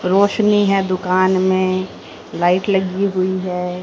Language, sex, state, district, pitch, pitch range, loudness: Hindi, female, Haryana, Rohtak, 185 Hz, 185-195 Hz, -17 LUFS